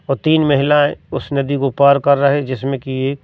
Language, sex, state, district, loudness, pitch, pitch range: Hindi, male, Madhya Pradesh, Katni, -15 LUFS, 140 Hz, 135-145 Hz